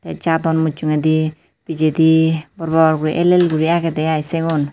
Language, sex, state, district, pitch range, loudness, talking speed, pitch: Chakma, female, Tripura, Unakoti, 155-165 Hz, -16 LUFS, 165 wpm, 160 Hz